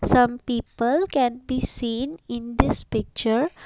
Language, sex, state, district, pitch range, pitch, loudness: English, female, Assam, Kamrup Metropolitan, 235-265 Hz, 245 Hz, -24 LUFS